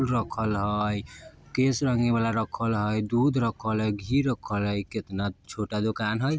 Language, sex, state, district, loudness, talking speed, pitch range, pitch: Bajjika, male, Bihar, Vaishali, -27 LUFS, 160 wpm, 105-120 Hz, 110 Hz